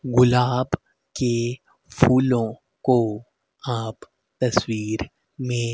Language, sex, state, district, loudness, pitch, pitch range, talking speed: Hindi, male, Haryana, Rohtak, -23 LUFS, 120 Hz, 115-130 Hz, 75 wpm